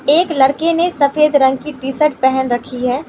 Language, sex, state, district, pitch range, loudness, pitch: Hindi, female, Manipur, Imphal West, 265-300 Hz, -15 LUFS, 280 Hz